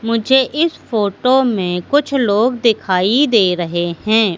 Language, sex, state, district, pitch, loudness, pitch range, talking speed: Hindi, female, Madhya Pradesh, Katni, 220 Hz, -15 LUFS, 185-260 Hz, 135 wpm